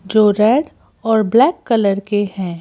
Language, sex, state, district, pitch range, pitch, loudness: Hindi, female, Madhya Pradesh, Bhopal, 200-230 Hz, 215 Hz, -15 LUFS